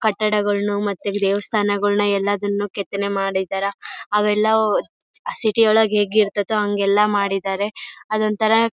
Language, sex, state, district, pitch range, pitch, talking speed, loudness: Kannada, female, Karnataka, Bellary, 200-215 Hz, 205 Hz, 90 wpm, -19 LUFS